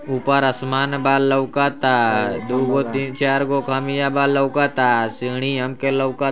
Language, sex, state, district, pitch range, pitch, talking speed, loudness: Bhojpuri, male, Uttar Pradesh, Ghazipur, 130-140 Hz, 135 Hz, 160 wpm, -19 LUFS